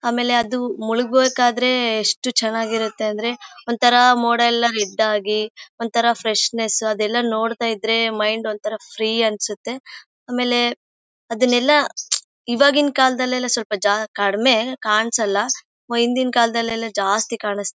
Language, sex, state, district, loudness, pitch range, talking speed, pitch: Kannada, female, Karnataka, Bellary, -19 LUFS, 220-245 Hz, 105 wpm, 230 Hz